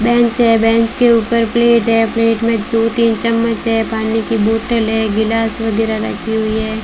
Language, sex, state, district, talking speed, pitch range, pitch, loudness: Hindi, female, Rajasthan, Bikaner, 195 wpm, 220-230 Hz, 225 Hz, -14 LUFS